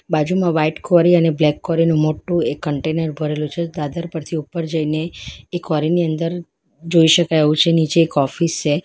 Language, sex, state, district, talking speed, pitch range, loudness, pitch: Gujarati, female, Gujarat, Valsad, 185 wpm, 155-170 Hz, -18 LUFS, 160 Hz